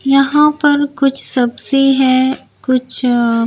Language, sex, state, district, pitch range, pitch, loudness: Hindi, female, Bihar, Patna, 255-275 Hz, 270 Hz, -13 LUFS